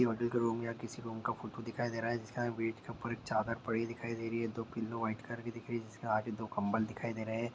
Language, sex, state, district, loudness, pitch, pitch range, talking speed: Hindi, male, Bihar, Sitamarhi, -38 LUFS, 115 Hz, 110-115 Hz, 335 wpm